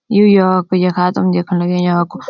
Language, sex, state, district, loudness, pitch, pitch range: Garhwali, female, Uttarakhand, Uttarkashi, -14 LUFS, 180 Hz, 180-190 Hz